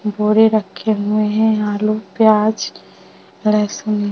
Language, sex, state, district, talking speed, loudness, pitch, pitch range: Hindi, female, Bihar, Vaishali, 115 wpm, -16 LUFS, 215 Hz, 210-220 Hz